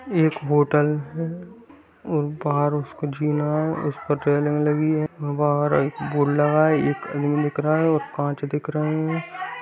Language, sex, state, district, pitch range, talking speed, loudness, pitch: Hindi, male, Bihar, Bhagalpur, 145-155 Hz, 145 wpm, -22 LUFS, 150 Hz